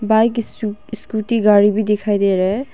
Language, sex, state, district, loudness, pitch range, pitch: Hindi, female, Arunachal Pradesh, Longding, -17 LUFS, 205-225 Hz, 215 Hz